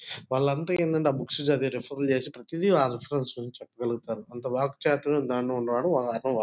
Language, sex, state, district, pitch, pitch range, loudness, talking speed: Telugu, male, Andhra Pradesh, Guntur, 135 Hz, 120-145 Hz, -27 LUFS, 175 wpm